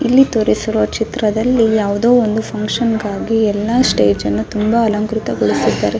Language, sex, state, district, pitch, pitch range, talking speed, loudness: Kannada, female, Karnataka, Raichur, 220 Hz, 210-230 Hz, 140 wpm, -15 LUFS